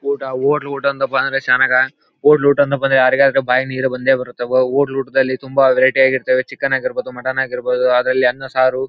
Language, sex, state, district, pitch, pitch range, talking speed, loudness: Kannada, male, Karnataka, Bellary, 130 Hz, 130-140 Hz, 195 wpm, -16 LUFS